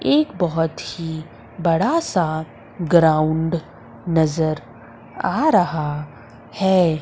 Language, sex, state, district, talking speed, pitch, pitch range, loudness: Hindi, female, Madhya Pradesh, Umaria, 85 wpm, 160 Hz, 150-170 Hz, -20 LUFS